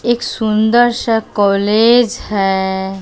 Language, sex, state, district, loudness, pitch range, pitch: Hindi, female, Bihar, West Champaran, -14 LUFS, 195-235 Hz, 215 Hz